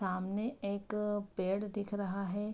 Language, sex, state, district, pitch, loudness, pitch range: Hindi, female, Bihar, Araria, 200 Hz, -37 LUFS, 195-210 Hz